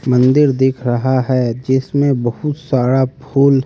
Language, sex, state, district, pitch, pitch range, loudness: Hindi, male, Haryana, Rohtak, 130 Hz, 125-140 Hz, -15 LUFS